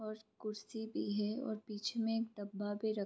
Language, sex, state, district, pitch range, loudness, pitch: Hindi, female, Bihar, Vaishali, 210-220 Hz, -40 LUFS, 215 Hz